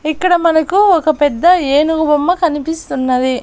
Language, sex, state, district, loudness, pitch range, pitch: Telugu, female, Andhra Pradesh, Annamaya, -13 LUFS, 290-350 Hz, 315 Hz